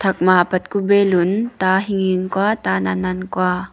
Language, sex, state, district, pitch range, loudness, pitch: Wancho, female, Arunachal Pradesh, Longding, 180-195 Hz, -18 LUFS, 185 Hz